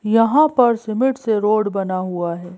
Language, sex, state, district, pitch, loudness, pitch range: Hindi, female, Madhya Pradesh, Bhopal, 215 Hz, -18 LUFS, 185-235 Hz